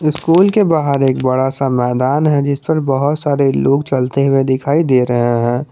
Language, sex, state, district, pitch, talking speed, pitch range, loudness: Hindi, male, Jharkhand, Garhwa, 140 Hz, 200 wpm, 130-150 Hz, -14 LUFS